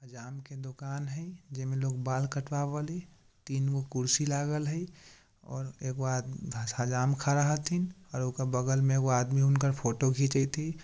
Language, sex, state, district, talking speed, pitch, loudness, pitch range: Bajjika, male, Bihar, Vaishali, 170 wpm, 135 Hz, -31 LUFS, 130-150 Hz